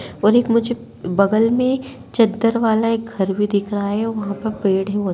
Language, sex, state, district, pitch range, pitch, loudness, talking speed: Hindi, female, Bihar, Madhepura, 200-230 Hz, 215 Hz, -19 LUFS, 220 wpm